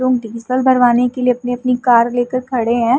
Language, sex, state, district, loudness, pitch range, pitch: Hindi, female, Uttar Pradesh, Muzaffarnagar, -15 LUFS, 240-255 Hz, 245 Hz